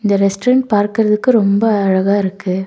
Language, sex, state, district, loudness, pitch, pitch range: Tamil, female, Tamil Nadu, Nilgiris, -14 LUFS, 205 Hz, 195-220 Hz